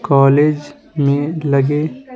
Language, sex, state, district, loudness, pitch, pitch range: Hindi, male, Bihar, Patna, -15 LUFS, 145 Hz, 140-155 Hz